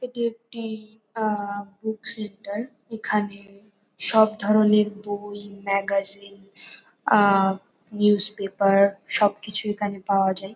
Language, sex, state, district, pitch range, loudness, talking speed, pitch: Bengali, female, West Bengal, North 24 Parganas, 200-215 Hz, -23 LUFS, 100 wpm, 205 Hz